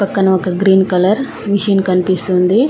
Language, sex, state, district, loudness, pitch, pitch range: Telugu, female, Telangana, Mahabubabad, -13 LUFS, 190 Hz, 185-200 Hz